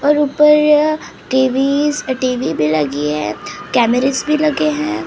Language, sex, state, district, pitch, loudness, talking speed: Hindi, male, Maharashtra, Gondia, 260 Hz, -15 LUFS, 130 wpm